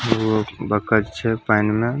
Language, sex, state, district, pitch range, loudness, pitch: Maithili, male, Bihar, Samastipur, 105-115 Hz, -20 LUFS, 110 Hz